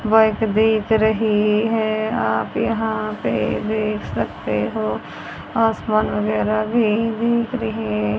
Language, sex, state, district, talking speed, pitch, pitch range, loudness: Hindi, female, Haryana, Charkhi Dadri, 110 wpm, 220 Hz, 210-225 Hz, -20 LUFS